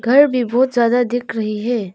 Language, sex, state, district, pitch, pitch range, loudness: Hindi, female, Arunachal Pradesh, Longding, 240 Hz, 225-250 Hz, -17 LUFS